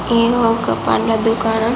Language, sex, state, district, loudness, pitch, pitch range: Telugu, female, Andhra Pradesh, Srikakulam, -16 LUFS, 225 Hz, 225-230 Hz